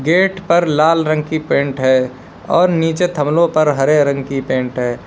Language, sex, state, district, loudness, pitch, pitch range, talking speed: Hindi, male, Uttar Pradesh, Lalitpur, -15 LUFS, 150 Hz, 135-165 Hz, 190 wpm